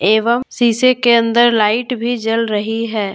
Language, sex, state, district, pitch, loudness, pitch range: Hindi, female, Jharkhand, Deoghar, 230 Hz, -14 LUFS, 220-240 Hz